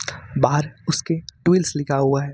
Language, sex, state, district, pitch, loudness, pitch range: Hindi, male, Jharkhand, Ranchi, 145 Hz, -21 LUFS, 140-165 Hz